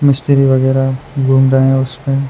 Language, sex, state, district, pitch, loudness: Hindi, male, Uttar Pradesh, Hamirpur, 135 Hz, -13 LUFS